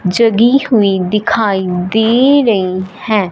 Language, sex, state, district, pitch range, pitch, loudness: Hindi, female, Punjab, Fazilka, 190-235 Hz, 210 Hz, -12 LUFS